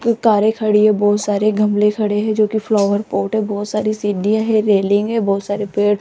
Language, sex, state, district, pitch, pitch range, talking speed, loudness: Hindi, female, Rajasthan, Jaipur, 210 Hz, 205-215 Hz, 220 wpm, -16 LUFS